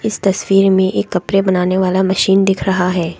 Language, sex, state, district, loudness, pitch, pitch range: Hindi, female, Assam, Kamrup Metropolitan, -14 LUFS, 190 Hz, 180-195 Hz